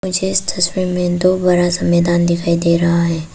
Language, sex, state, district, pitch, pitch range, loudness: Hindi, female, Arunachal Pradesh, Papum Pare, 175 Hz, 170-185 Hz, -15 LUFS